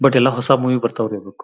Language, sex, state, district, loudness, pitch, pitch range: Kannada, male, Karnataka, Belgaum, -17 LUFS, 125 Hz, 115-130 Hz